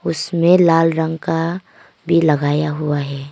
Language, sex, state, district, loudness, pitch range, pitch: Hindi, female, Arunachal Pradesh, Longding, -16 LUFS, 150-170 Hz, 165 Hz